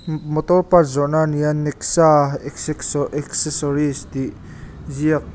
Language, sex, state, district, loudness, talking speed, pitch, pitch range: Mizo, male, Mizoram, Aizawl, -19 LUFS, 125 wpm, 150 Hz, 145-155 Hz